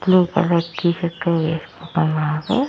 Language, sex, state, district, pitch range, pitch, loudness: Telugu, female, Andhra Pradesh, Annamaya, 160-175 Hz, 170 Hz, -20 LUFS